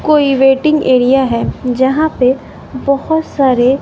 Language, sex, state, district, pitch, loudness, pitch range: Hindi, female, Bihar, West Champaran, 270 Hz, -12 LUFS, 255-300 Hz